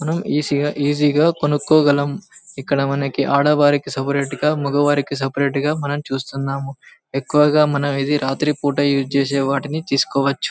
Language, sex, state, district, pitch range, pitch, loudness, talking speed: Telugu, male, Telangana, Karimnagar, 140-150 Hz, 140 Hz, -18 LUFS, 40 wpm